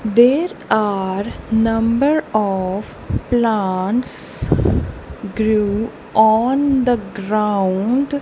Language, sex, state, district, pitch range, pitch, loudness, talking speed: English, female, Punjab, Kapurthala, 205-245 Hz, 220 Hz, -18 LUFS, 65 wpm